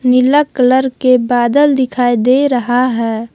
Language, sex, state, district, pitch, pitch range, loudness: Hindi, female, Jharkhand, Palamu, 250 Hz, 245-260 Hz, -12 LUFS